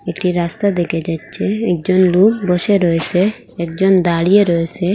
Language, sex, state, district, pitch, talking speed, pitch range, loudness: Bengali, female, Assam, Hailakandi, 180 Hz, 145 wpm, 170-195 Hz, -15 LUFS